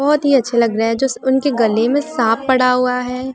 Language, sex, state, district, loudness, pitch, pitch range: Hindi, female, Uttar Pradesh, Muzaffarnagar, -16 LUFS, 255 Hz, 235-270 Hz